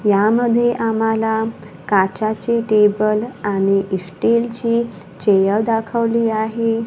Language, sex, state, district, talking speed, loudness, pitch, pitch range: Marathi, female, Maharashtra, Gondia, 80 wpm, -18 LUFS, 220 Hz, 205-230 Hz